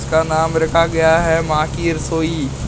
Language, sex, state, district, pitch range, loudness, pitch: Hindi, male, Uttar Pradesh, Shamli, 160-165 Hz, -16 LUFS, 160 Hz